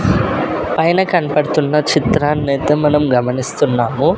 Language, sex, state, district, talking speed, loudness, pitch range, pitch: Telugu, male, Andhra Pradesh, Sri Satya Sai, 85 wpm, -15 LUFS, 140-150 Hz, 150 Hz